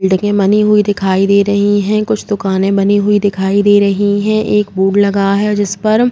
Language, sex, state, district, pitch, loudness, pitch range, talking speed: Hindi, female, Uttar Pradesh, Jalaun, 205 Hz, -12 LUFS, 195-210 Hz, 205 wpm